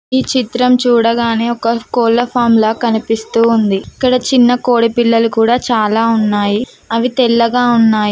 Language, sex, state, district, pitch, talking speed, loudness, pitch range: Telugu, female, Telangana, Mahabubabad, 235 Hz, 140 wpm, -13 LUFS, 225-245 Hz